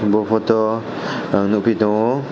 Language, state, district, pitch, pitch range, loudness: Kokborok, Tripura, West Tripura, 110 Hz, 105-115 Hz, -18 LUFS